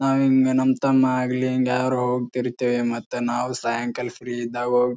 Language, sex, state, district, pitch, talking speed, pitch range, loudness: Kannada, male, Karnataka, Bijapur, 125 Hz, 145 wpm, 120-130 Hz, -22 LUFS